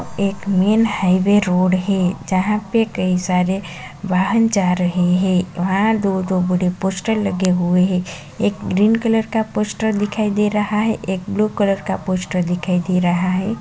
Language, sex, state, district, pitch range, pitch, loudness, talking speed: Kumaoni, female, Uttarakhand, Tehri Garhwal, 180-210 Hz, 190 Hz, -18 LUFS, 170 wpm